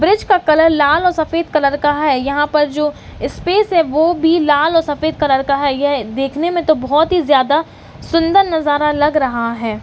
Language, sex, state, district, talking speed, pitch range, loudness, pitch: Hindi, female, Uttarakhand, Uttarkashi, 205 wpm, 285-330 Hz, -14 LUFS, 300 Hz